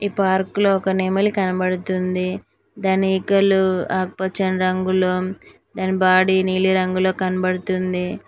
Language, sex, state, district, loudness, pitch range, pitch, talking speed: Telugu, female, Telangana, Mahabubabad, -19 LUFS, 185-190 Hz, 185 Hz, 100 wpm